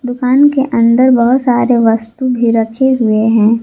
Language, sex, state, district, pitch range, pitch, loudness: Hindi, female, Jharkhand, Garhwa, 225-255 Hz, 240 Hz, -11 LUFS